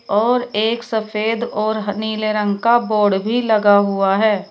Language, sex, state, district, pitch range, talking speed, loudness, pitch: Hindi, female, Uttar Pradesh, Shamli, 205-225 Hz, 160 wpm, -17 LUFS, 215 Hz